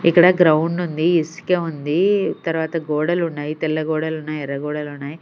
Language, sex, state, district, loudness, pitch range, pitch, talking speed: Telugu, female, Andhra Pradesh, Sri Satya Sai, -20 LUFS, 150-170 Hz, 160 Hz, 160 wpm